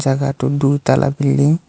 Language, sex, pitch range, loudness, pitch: Assamese, male, 140-145 Hz, -16 LUFS, 140 Hz